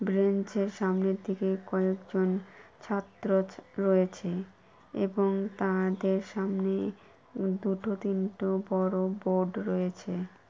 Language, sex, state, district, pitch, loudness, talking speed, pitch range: Bengali, female, West Bengal, Kolkata, 195 Hz, -30 LUFS, 105 wpm, 190-200 Hz